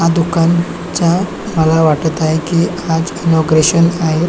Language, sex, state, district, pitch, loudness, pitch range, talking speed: Marathi, male, Maharashtra, Chandrapur, 165 Hz, -13 LUFS, 160-170 Hz, 140 wpm